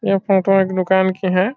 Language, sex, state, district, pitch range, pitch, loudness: Hindi, male, Bihar, Saran, 185-195 Hz, 190 Hz, -16 LUFS